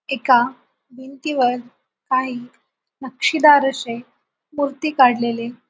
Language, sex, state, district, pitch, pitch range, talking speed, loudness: Marathi, female, Maharashtra, Sindhudurg, 260 Hz, 245-275 Hz, 75 wpm, -18 LUFS